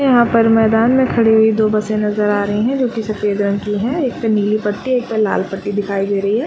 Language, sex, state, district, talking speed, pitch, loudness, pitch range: Hindi, female, Chhattisgarh, Raigarh, 275 wpm, 215 Hz, -16 LUFS, 205-230 Hz